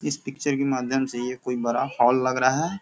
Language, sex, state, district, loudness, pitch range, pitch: Hindi, male, Bihar, Sitamarhi, -24 LUFS, 125-135 Hz, 130 Hz